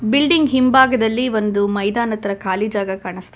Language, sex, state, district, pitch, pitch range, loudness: Kannada, female, Karnataka, Bangalore, 215 Hz, 200-255 Hz, -17 LUFS